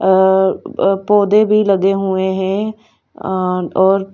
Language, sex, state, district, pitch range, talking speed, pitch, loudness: Hindi, female, Haryana, Charkhi Dadri, 190-200 Hz, 130 wpm, 190 Hz, -15 LUFS